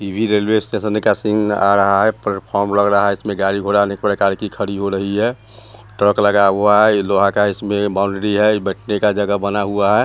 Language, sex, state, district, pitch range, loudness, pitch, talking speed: Hindi, male, Bihar, Muzaffarpur, 100-105 Hz, -16 LUFS, 100 Hz, 240 wpm